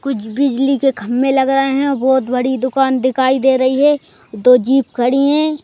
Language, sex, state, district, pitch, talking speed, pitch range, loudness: Hindi, male, Madhya Pradesh, Bhopal, 265 Hz, 170 wpm, 255-275 Hz, -14 LUFS